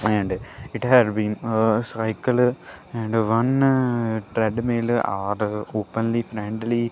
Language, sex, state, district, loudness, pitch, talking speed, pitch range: English, male, Punjab, Kapurthala, -22 LUFS, 115 Hz, 105 wpm, 110-120 Hz